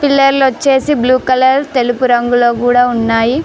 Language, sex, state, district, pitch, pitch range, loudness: Telugu, female, Telangana, Mahabubabad, 255 Hz, 245-270 Hz, -11 LUFS